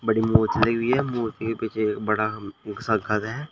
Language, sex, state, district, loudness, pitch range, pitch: Hindi, male, Uttar Pradesh, Shamli, -24 LUFS, 105-115 Hz, 110 Hz